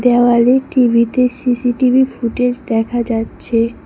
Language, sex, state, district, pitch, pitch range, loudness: Bengali, female, West Bengal, Cooch Behar, 245 Hz, 235-255 Hz, -14 LUFS